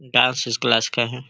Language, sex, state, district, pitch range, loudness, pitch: Hindi, male, Chhattisgarh, Sarguja, 120-125 Hz, -20 LUFS, 125 Hz